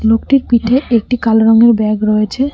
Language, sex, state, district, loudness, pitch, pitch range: Bengali, female, West Bengal, Cooch Behar, -12 LUFS, 225 Hz, 220-250 Hz